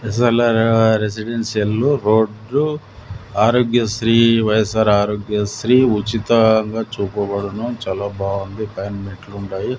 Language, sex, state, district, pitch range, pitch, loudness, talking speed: Telugu, male, Andhra Pradesh, Sri Satya Sai, 100-115 Hz, 110 Hz, -17 LUFS, 85 wpm